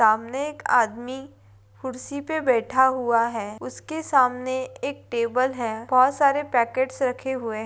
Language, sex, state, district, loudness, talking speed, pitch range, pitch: Hindi, female, Bihar, Madhepura, -23 LUFS, 150 wpm, 230-265 Hz, 255 Hz